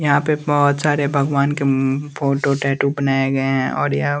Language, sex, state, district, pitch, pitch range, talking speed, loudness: Hindi, male, Bihar, West Champaran, 140 Hz, 135-145 Hz, 200 wpm, -18 LUFS